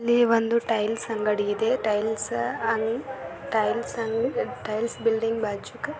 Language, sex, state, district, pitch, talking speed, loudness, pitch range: Kannada, female, Karnataka, Belgaum, 225 Hz, 60 wpm, -26 LUFS, 215-235 Hz